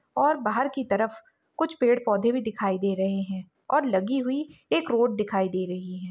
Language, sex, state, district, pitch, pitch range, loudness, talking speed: Hindi, female, Bihar, Saharsa, 220 Hz, 190-265 Hz, -26 LUFS, 195 wpm